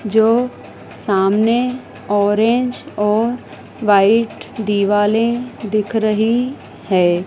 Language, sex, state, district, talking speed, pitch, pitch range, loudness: Hindi, female, Madhya Pradesh, Dhar, 75 wpm, 220 Hz, 205-235 Hz, -17 LUFS